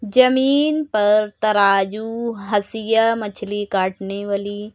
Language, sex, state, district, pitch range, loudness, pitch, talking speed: Hindi, male, Uttar Pradesh, Lucknow, 200-225 Hz, -19 LUFS, 210 Hz, 90 wpm